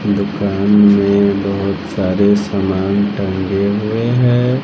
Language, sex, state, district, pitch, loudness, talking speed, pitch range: Hindi, male, Bihar, West Champaran, 100 Hz, -15 LUFS, 105 wpm, 100-105 Hz